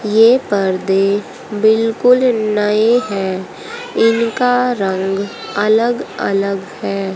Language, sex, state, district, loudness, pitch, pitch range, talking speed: Hindi, female, Haryana, Rohtak, -15 LUFS, 215 Hz, 195-240 Hz, 85 wpm